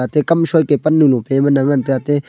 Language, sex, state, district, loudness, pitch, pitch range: Wancho, male, Arunachal Pradesh, Longding, -14 LUFS, 145 Hz, 135-155 Hz